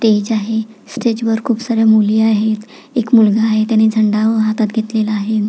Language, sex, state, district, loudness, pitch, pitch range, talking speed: Marathi, female, Maharashtra, Pune, -14 LUFS, 220 Hz, 215-225 Hz, 175 wpm